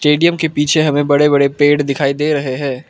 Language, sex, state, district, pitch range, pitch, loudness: Hindi, male, Arunachal Pradesh, Lower Dibang Valley, 140-150 Hz, 145 Hz, -14 LUFS